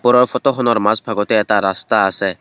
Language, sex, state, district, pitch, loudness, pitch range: Assamese, male, Assam, Kamrup Metropolitan, 105 Hz, -15 LUFS, 100-125 Hz